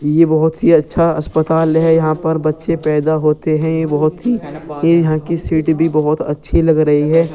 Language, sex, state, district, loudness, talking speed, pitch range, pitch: Hindi, male, Uttar Pradesh, Jyotiba Phule Nagar, -14 LUFS, 205 wpm, 155-165 Hz, 160 Hz